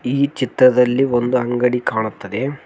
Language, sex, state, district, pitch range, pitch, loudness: Kannada, male, Karnataka, Koppal, 120-130 Hz, 125 Hz, -17 LUFS